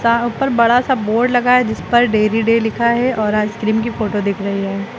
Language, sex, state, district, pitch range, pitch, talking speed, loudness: Hindi, female, Uttar Pradesh, Lucknow, 215-240 Hz, 230 Hz, 240 wpm, -16 LUFS